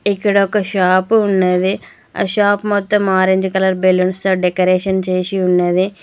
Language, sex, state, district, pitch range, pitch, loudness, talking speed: Telugu, female, Telangana, Mahabubabad, 185-200 Hz, 190 Hz, -15 LUFS, 140 wpm